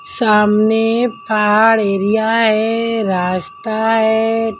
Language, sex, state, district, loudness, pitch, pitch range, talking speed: Hindi, female, Delhi, New Delhi, -14 LUFS, 220 Hz, 210-225 Hz, 80 wpm